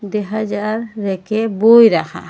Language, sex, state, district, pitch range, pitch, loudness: Bengali, female, Assam, Hailakandi, 205-225 Hz, 215 Hz, -15 LUFS